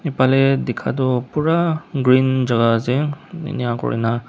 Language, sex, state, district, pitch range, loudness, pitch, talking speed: Nagamese, male, Nagaland, Dimapur, 125-150 Hz, -18 LUFS, 130 Hz, 110 wpm